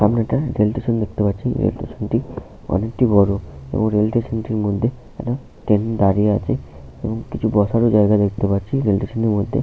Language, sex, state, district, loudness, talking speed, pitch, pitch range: Bengali, male, West Bengal, Paschim Medinipur, -19 LUFS, 210 wpm, 105 Hz, 100-115 Hz